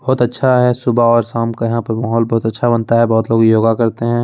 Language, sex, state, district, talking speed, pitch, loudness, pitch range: Hindi, male, Bihar, Begusarai, 270 wpm, 115 Hz, -14 LUFS, 115-120 Hz